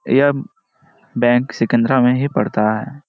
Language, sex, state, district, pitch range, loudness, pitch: Hindi, male, Bihar, Jamui, 115-135 Hz, -17 LUFS, 125 Hz